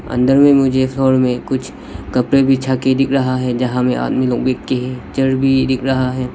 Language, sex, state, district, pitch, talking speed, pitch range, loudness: Hindi, male, Arunachal Pradesh, Lower Dibang Valley, 130 Hz, 225 wpm, 130-135 Hz, -15 LUFS